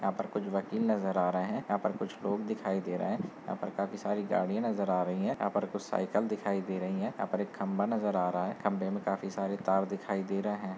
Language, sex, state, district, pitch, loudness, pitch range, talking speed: Hindi, male, West Bengal, Malda, 100 Hz, -33 LUFS, 95-105 Hz, 280 wpm